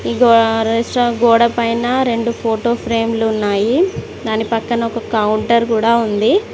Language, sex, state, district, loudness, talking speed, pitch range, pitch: Telugu, female, Telangana, Mahabubabad, -15 LUFS, 130 wpm, 225-235 Hz, 230 Hz